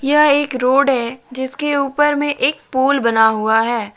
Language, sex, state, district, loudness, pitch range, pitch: Hindi, male, Jharkhand, Deoghar, -16 LUFS, 235-285 Hz, 265 Hz